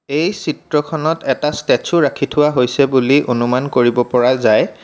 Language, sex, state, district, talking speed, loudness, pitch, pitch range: Assamese, male, Assam, Kamrup Metropolitan, 150 wpm, -15 LUFS, 140 Hz, 125-150 Hz